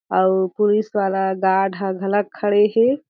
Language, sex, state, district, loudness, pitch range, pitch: Chhattisgarhi, female, Chhattisgarh, Jashpur, -19 LUFS, 190-210 Hz, 200 Hz